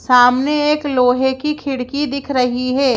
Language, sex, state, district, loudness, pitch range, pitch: Hindi, female, Madhya Pradesh, Bhopal, -16 LUFS, 250-285 Hz, 265 Hz